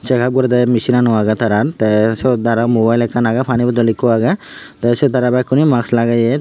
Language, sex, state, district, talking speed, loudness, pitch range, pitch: Chakma, male, Tripura, Unakoti, 195 wpm, -14 LUFS, 115-125 Hz, 120 Hz